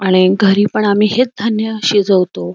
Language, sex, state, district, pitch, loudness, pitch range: Marathi, female, Karnataka, Belgaum, 205 Hz, -13 LUFS, 190-215 Hz